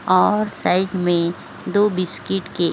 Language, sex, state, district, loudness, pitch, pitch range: Hindi, female, Uttar Pradesh, Etah, -20 LUFS, 180 Hz, 170-195 Hz